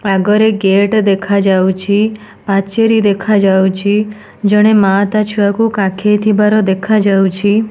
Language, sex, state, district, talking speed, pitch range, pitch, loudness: Odia, female, Odisha, Nuapada, 95 wpm, 195-215 Hz, 205 Hz, -12 LUFS